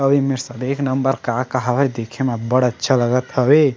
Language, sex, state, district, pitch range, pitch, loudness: Chhattisgarhi, male, Chhattisgarh, Sarguja, 125-135 Hz, 130 Hz, -19 LUFS